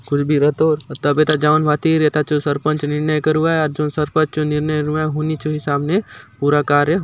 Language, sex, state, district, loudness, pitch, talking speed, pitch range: Halbi, male, Chhattisgarh, Bastar, -17 LUFS, 150 Hz, 205 wpm, 150-155 Hz